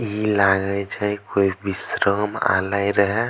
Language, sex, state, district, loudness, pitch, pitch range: Angika, male, Bihar, Bhagalpur, -21 LUFS, 100 Hz, 100-105 Hz